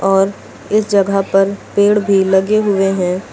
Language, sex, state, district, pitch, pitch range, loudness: Hindi, female, Uttar Pradesh, Lucknow, 195 Hz, 195-205 Hz, -14 LUFS